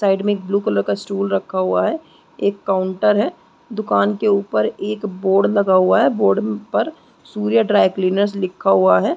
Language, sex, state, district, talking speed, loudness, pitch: Hindi, female, Chhattisgarh, Balrampur, 195 wpm, -18 LUFS, 195 Hz